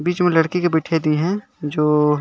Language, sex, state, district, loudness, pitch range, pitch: Sadri, male, Chhattisgarh, Jashpur, -19 LUFS, 150-175 Hz, 160 Hz